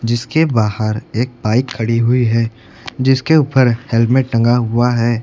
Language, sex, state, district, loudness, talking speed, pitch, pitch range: Hindi, male, Uttar Pradesh, Lucknow, -15 LUFS, 150 wpm, 120 Hz, 115-130 Hz